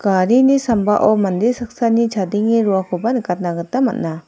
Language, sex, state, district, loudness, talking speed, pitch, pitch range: Garo, female, Meghalaya, South Garo Hills, -16 LUFS, 125 wpm, 215 Hz, 190-235 Hz